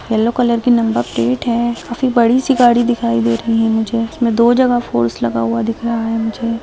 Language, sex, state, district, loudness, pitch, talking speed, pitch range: Hindi, female, Rajasthan, Churu, -15 LUFS, 230 Hz, 215 wpm, 220-240 Hz